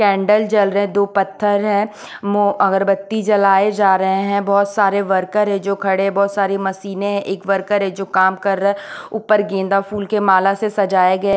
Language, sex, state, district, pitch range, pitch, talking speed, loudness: Hindi, female, Odisha, Khordha, 195-205 Hz, 200 Hz, 200 wpm, -17 LUFS